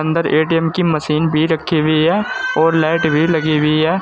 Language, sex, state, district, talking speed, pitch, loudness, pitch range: Hindi, male, Uttar Pradesh, Saharanpur, 210 wpm, 160 Hz, -15 LUFS, 155-165 Hz